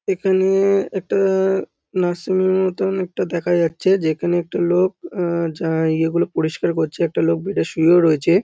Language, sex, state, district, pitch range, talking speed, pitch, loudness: Bengali, male, West Bengal, North 24 Parganas, 170-190 Hz, 180 wpm, 175 Hz, -19 LUFS